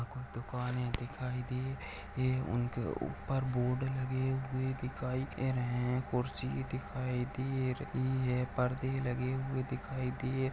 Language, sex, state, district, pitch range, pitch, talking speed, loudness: Hindi, male, Chhattisgarh, Balrampur, 125-130 Hz, 130 Hz, 135 wpm, -36 LUFS